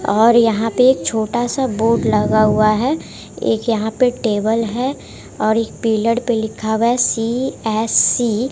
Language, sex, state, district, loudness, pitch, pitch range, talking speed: Hindi, female, Bihar, West Champaran, -16 LUFS, 225 Hz, 220-245 Hz, 170 wpm